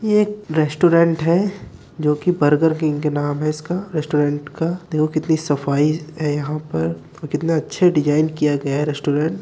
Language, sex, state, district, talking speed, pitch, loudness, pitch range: Hindi, male, Uttar Pradesh, Muzaffarnagar, 185 wpm, 155 Hz, -19 LUFS, 145-165 Hz